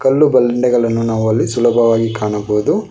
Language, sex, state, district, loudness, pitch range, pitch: Kannada, male, Karnataka, Bangalore, -14 LUFS, 110-120 Hz, 115 Hz